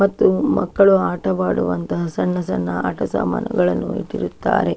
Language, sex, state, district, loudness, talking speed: Kannada, female, Karnataka, Shimoga, -19 LUFS, 115 wpm